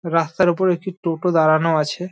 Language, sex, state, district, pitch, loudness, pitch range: Bengali, male, West Bengal, Dakshin Dinajpur, 170 Hz, -19 LUFS, 160-180 Hz